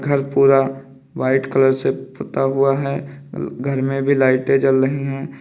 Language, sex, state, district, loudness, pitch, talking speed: Hindi, male, Uttar Pradesh, Lalitpur, -18 LUFS, 135 Hz, 165 wpm